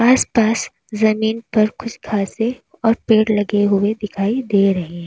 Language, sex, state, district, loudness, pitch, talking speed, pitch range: Hindi, female, Uttar Pradesh, Lalitpur, -18 LUFS, 215 Hz, 165 wpm, 205-230 Hz